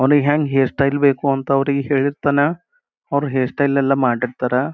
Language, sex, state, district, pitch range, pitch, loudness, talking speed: Kannada, male, Karnataka, Gulbarga, 135-145 Hz, 140 Hz, -18 LUFS, 165 wpm